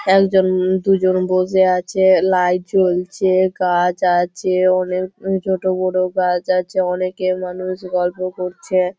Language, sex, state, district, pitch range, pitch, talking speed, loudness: Bengali, female, West Bengal, Malda, 180-190 Hz, 185 Hz, 115 wpm, -17 LUFS